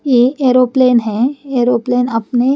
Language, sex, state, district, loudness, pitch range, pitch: Hindi, female, Bihar, West Champaran, -13 LUFS, 245-255 Hz, 250 Hz